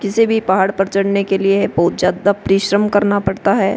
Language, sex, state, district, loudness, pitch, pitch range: Hindi, female, Uttar Pradesh, Hamirpur, -15 LUFS, 195 Hz, 195-205 Hz